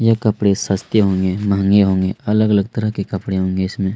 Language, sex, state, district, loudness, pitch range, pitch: Hindi, male, Chhattisgarh, Kabirdham, -17 LUFS, 95-105 Hz, 100 Hz